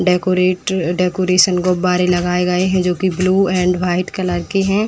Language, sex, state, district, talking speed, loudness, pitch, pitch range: Hindi, female, Uttar Pradesh, Etah, 170 wpm, -16 LUFS, 180 Hz, 180-185 Hz